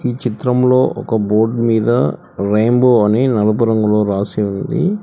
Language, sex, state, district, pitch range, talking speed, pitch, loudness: Telugu, male, Telangana, Hyderabad, 105-125 Hz, 120 wpm, 115 Hz, -15 LUFS